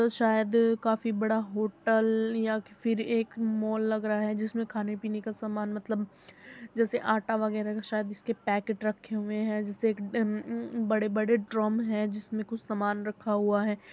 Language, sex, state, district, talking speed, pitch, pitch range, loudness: Hindi, female, Uttar Pradesh, Muzaffarnagar, 180 wpm, 220 Hz, 210-225 Hz, -30 LUFS